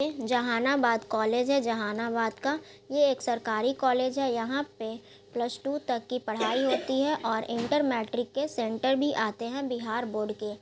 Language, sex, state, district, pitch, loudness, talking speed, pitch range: Hindi, female, Bihar, Gaya, 240 Hz, -29 LUFS, 175 wpm, 225-275 Hz